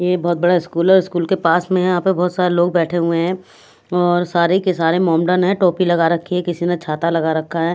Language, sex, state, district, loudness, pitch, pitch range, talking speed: Hindi, female, Haryana, Rohtak, -17 LUFS, 175 Hz, 170-180 Hz, 265 wpm